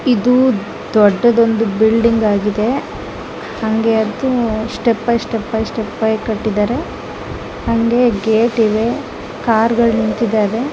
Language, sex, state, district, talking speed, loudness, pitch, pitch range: Kannada, female, Karnataka, Mysore, 110 wpm, -15 LUFS, 225 Hz, 220-235 Hz